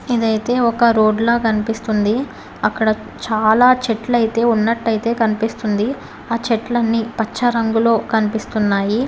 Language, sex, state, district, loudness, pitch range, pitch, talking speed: Telugu, female, Telangana, Hyderabad, -17 LUFS, 220-235 Hz, 225 Hz, 100 wpm